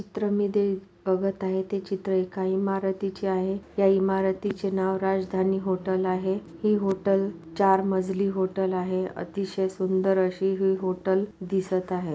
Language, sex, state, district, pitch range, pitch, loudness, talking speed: Marathi, female, Maharashtra, Pune, 185-195 Hz, 190 Hz, -26 LUFS, 135 wpm